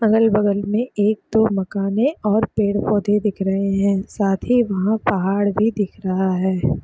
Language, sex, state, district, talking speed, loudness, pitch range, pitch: Hindi, female, Chhattisgarh, Sukma, 160 wpm, -19 LUFS, 195-215 Hz, 205 Hz